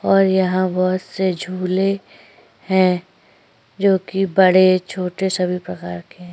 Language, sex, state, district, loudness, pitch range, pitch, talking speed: Hindi, female, Uttar Pradesh, Jyotiba Phule Nagar, -18 LUFS, 180-190 Hz, 185 Hz, 140 wpm